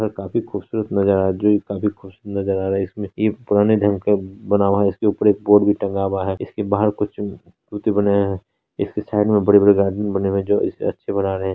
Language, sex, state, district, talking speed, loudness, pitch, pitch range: Hindi, female, Bihar, Araria, 235 wpm, -19 LUFS, 100 Hz, 95-105 Hz